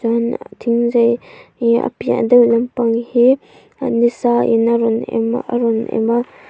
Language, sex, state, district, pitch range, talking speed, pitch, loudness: Mizo, female, Mizoram, Aizawl, 230-240 Hz, 165 wpm, 235 Hz, -16 LUFS